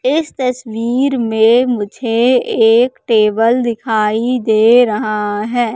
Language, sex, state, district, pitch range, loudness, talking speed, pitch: Hindi, female, Madhya Pradesh, Katni, 220-250 Hz, -14 LUFS, 105 wpm, 230 Hz